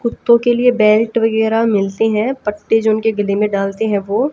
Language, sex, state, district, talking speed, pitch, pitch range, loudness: Hindi, female, Haryana, Jhajjar, 210 wpm, 220 Hz, 210-230 Hz, -15 LUFS